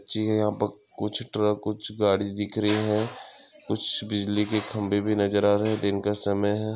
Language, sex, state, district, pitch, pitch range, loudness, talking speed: Hindi, male, Chhattisgarh, Sukma, 105 Hz, 100-105 Hz, -26 LUFS, 210 wpm